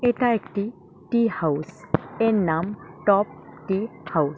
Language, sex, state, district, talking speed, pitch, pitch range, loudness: Bengali, female, West Bengal, Cooch Behar, 135 wpm, 195 Hz, 165-225 Hz, -24 LUFS